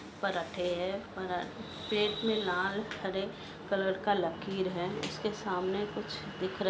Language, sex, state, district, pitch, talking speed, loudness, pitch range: Hindi, female, Maharashtra, Solapur, 195 Hz, 145 wpm, -34 LUFS, 185-205 Hz